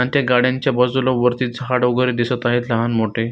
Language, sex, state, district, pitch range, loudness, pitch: Marathi, male, Maharashtra, Solapur, 120-125 Hz, -18 LUFS, 125 Hz